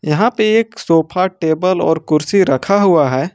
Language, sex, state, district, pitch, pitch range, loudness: Hindi, male, Uttar Pradesh, Lucknow, 180 Hz, 160-200 Hz, -14 LUFS